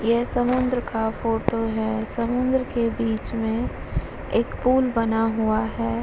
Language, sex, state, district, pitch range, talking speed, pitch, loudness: Hindi, female, Bihar, Vaishali, 220-245 Hz, 140 wpm, 230 Hz, -24 LUFS